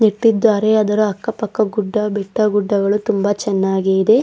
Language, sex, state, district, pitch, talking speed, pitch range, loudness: Kannada, female, Karnataka, Dakshina Kannada, 210 Hz, 140 wpm, 200-220 Hz, -17 LUFS